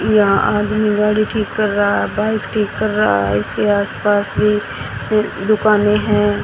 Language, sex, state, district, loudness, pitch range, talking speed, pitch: Hindi, female, Haryana, Rohtak, -16 LUFS, 205-215 Hz, 170 wpm, 210 Hz